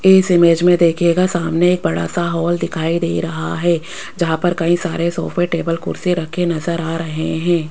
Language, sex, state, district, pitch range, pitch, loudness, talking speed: Hindi, female, Rajasthan, Jaipur, 165-175 Hz, 170 Hz, -17 LUFS, 195 wpm